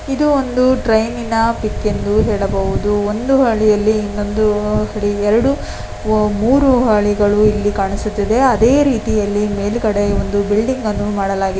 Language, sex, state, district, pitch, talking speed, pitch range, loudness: Kannada, female, Karnataka, Dakshina Kannada, 215 Hz, 90 wpm, 205-230 Hz, -15 LUFS